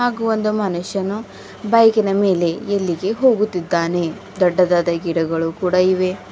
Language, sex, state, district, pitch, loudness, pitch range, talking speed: Kannada, female, Karnataka, Bidar, 185 Hz, -18 LUFS, 175-210 Hz, 105 wpm